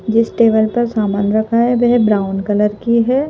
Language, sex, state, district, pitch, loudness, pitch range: Hindi, female, Madhya Pradesh, Bhopal, 225 Hz, -14 LUFS, 210-235 Hz